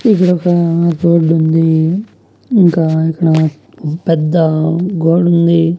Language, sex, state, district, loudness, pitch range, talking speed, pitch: Telugu, male, Andhra Pradesh, Annamaya, -12 LUFS, 160-175 Hz, 60 wpm, 165 Hz